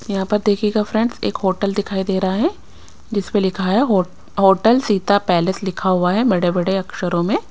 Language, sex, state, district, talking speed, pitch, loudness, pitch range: Hindi, female, Himachal Pradesh, Shimla, 185 wpm, 195 Hz, -18 LUFS, 190-210 Hz